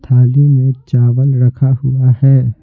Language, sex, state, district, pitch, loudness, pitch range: Hindi, male, Bihar, Patna, 130 Hz, -11 LUFS, 125-135 Hz